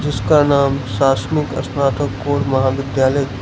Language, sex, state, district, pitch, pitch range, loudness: Hindi, male, Gujarat, Valsad, 135 Hz, 130-145 Hz, -17 LUFS